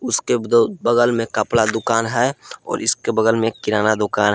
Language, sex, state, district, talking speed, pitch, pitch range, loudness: Hindi, male, Jharkhand, Palamu, 195 wpm, 115 Hz, 110-115 Hz, -18 LUFS